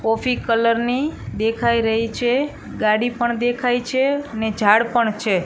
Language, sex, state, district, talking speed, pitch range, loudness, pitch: Gujarati, female, Gujarat, Gandhinagar, 155 wpm, 225-245 Hz, -19 LUFS, 235 Hz